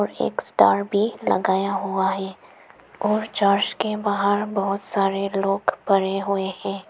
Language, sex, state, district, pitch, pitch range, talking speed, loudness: Hindi, female, Arunachal Pradesh, Papum Pare, 195 Hz, 195-205 Hz, 140 wpm, -22 LUFS